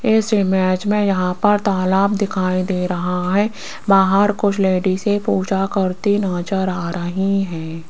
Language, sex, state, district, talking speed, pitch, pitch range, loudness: Hindi, female, Rajasthan, Jaipur, 145 wpm, 190 Hz, 185-205 Hz, -18 LUFS